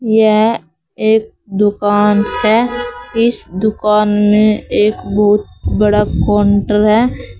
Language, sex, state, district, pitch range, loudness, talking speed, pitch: Hindi, female, Uttar Pradesh, Saharanpur, 205-220 Hz, -13 LUFS, 95 wpm, 210 Hz